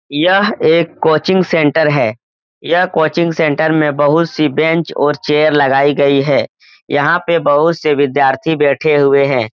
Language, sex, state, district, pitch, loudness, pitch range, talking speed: Hindi, male, Bihar, Lakhisarai, 150 Hz, -13 LUFS, 145-160 Hz, 155 wpm